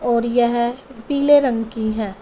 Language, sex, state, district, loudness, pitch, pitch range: Hindi, female, Punjab, Fazilka, -18 LUFS, 235 Hz, 225-260 Hz